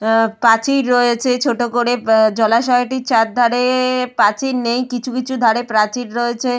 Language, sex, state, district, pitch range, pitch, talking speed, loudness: Bengali, female, West Bengal, Purulia, 225-250 Hz, 245 Hz, 145 wpm, -16 LUFS